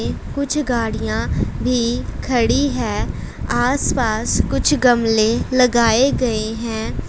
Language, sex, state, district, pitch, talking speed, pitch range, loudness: Hindi, female, Punjab, Pathankot, 240 Hz, 95 wpm, 225-260 Hz, -18 LUFS